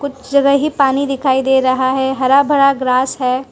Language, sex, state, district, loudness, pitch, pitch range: Hindi, female, Gujarat, Valsad, -14 LUFS, 265 Hz, 260-280 Hz